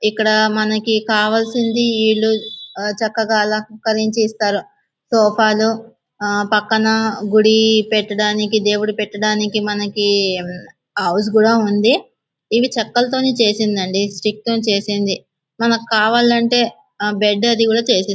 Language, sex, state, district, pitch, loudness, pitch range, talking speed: Telugu, male, Andhra Pradesh, Visakhapatnam, 215 Hz, -16 LUFS, 210-225 Hz, 100 wpm